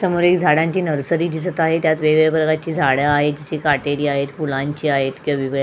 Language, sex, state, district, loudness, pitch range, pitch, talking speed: Marathi, female, Goa, North and South Goa, -18 LUFS, 145-165 Hz, 155 Hz, 190 wpm